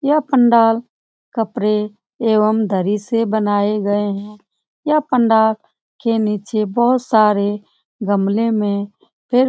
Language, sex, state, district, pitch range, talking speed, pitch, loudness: Hindi, female, Bihar, Lakhisarai, 205-235 Hz, 120 wpm, 220 Hz, -17 LUFS